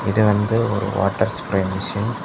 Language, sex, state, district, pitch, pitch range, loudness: Tamil, male, Tamil Nadu, Kanyakumari, 100 Hz, 95-105 Hz, -20 LUFS